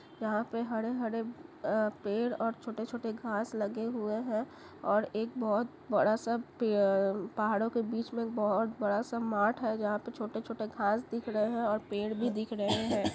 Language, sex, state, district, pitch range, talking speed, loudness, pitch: Hindi, female, Chhattisgarh, Bilaspur, 210-235 Hz, 180 wpm, -33 LUFS, 225 Hz